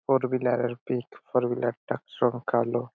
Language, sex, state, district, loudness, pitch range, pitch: Bengali, male, West Bengal, Purulia, -28 LUFS, 120-125 Hz, 120 Hz